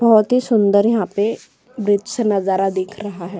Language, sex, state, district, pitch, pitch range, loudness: Hindi, female, Uttar Pradesh, Jyotiba Phule Nagar, 205 Hz, 195-225 Hz, -18 LUFS